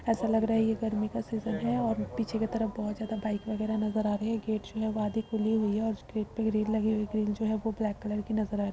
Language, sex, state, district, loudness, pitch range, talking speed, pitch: Hindi, female, Uttar Pradesh, Jalaun, -31 LUFS, 215-225 Hz, 310 wpm, 220 Hz